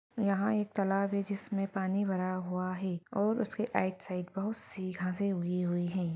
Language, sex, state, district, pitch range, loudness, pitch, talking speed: Hindi, female, Chhattisgarh, Rajnandgaon, 185-200 Hz, -33 LUFS, 195 Hz, 185 wpm